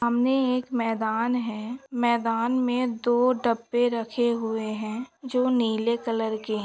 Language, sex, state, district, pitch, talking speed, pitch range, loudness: Hindi, female, Maharashtra, Pune, 235 Hz, 145 wpm, 225-250 Hz, -25 LUFS